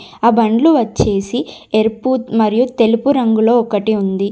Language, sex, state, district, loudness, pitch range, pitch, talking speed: Telugu, female, Telangana, Komaram Bheem, -14 LUFS, 215-245 Hz, 225 Hz, 125 wpm